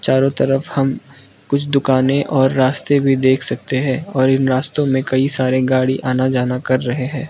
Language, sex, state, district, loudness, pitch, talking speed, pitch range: Hindi, male, Arunachal Pradesh, Lower Dibang Valley, -16 LUFS, 130 Hz, 190 wpm, 130-135 Hz